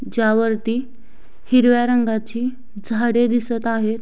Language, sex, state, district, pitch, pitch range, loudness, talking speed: Marathi, female, Maharashtra, Sindhudurg, 235 Hz, 225-245 Hz, -19 LUFS, 105 wpm